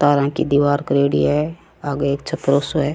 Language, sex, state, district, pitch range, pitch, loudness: Rajasthani, female, Rajasthan, Churu, 140-145 Hz, 145 Hz, -19 LUFS